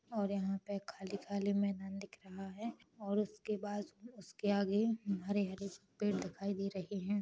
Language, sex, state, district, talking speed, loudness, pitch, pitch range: Hindi, female, Chhattisgarh, Rajnandgaon, 160 wpm, -39 LUFS, 200 Hz, 195-205 Hz